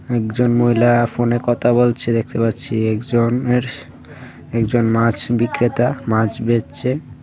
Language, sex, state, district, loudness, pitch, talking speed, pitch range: Bengali, male, Tripura, West Tripura, -17 LUFS, 120 Hz, 115 wpm, 115-120 Hz